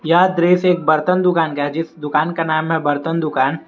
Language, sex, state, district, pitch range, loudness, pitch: Hindi, male, Jharkhand, Garhwa, 150-175 Hz, -17 LUFS, 165 Hz